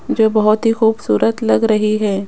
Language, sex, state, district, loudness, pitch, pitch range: Hindi, female, Rajasthan, Jaipur, -15 LUFS, 215 Hz, 195-220 Hz